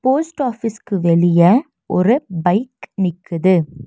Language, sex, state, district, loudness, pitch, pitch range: Tamil, female, Tamil Nadu, Nilgiris, -17 LUFS, 190 Hz, 175-245 Hz